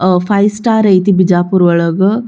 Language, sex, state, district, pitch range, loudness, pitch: Kannada, female, Karnataka, Bijapur, 180-205 Hz, -11 LUFS, 190 Hz